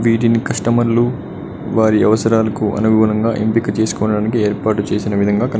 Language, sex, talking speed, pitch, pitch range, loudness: Telugu, male, 120 wpm, 110 Hz, 105-115 Hz, -15 LUFS